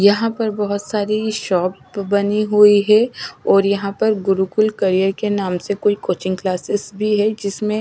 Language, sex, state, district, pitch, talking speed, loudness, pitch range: Hindi, female, Chandigarh, Chandigarh, 205 Hz, 170 wpm, -18 LUFS, 195-215 Hz